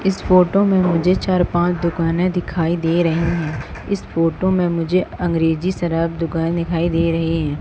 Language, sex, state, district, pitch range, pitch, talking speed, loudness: Hindi, female, Madhya Pradesh, Umaria, 165-180 Hz, 170 Hz, 175 wpm, -18 LUFS